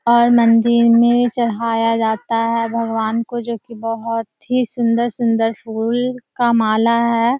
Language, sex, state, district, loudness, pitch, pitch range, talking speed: Hindi, female, Bihar, Kishanganj, -17 LUFS, 230 Hz, 230-235 Hz, 140 wpm